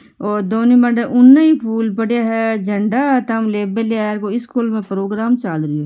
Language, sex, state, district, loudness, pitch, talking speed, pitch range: Marwari, female, Rajasthan, Nagaur, -15 LUFS, 225 Hz, 175 wpm, 210-240 Hz